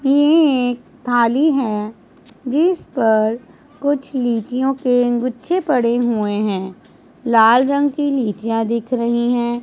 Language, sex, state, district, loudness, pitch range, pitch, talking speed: Hindi, male, Punjab, Pathankot, -17 LUFS, 230-275 Hz, 245 Hz, 125 wpm